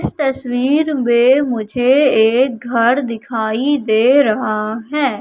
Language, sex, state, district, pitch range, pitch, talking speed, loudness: Hindi, female, Madhya Pradesh, Katni, 225-275 Hz, 245 Hz, 115 wpm, -15 LUFS